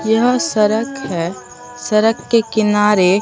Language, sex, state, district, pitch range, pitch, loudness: Hindi, female, Bihar, Katihar, 210-235 Hz, 220 Hz, -16 LUFS